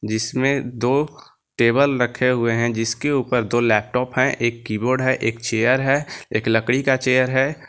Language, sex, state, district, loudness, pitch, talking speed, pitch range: Hindi, male, Jharkhand, Garhwa, -20 LUFS, 125 Hz, 170 wpm, 115-135 Hz